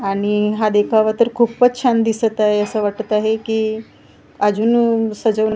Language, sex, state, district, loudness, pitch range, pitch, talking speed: Marathi, female, Maharashtra, Gondia, -17 LUFS, 210-225 Hz, 220 Hz, 150 wpm